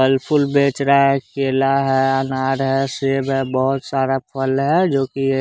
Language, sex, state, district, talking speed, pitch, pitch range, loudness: Hindi, male, Bihar, West Champaran, 200 wpm, 135 Hz, 135-140 Hz, -18 LUFS